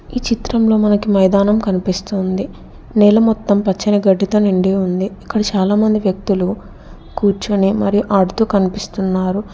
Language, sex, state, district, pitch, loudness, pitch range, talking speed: Telugu, female, Telangana, Hyderabad, 200 Hz, -15 LUFS, 190-210 Hz, 115 wpm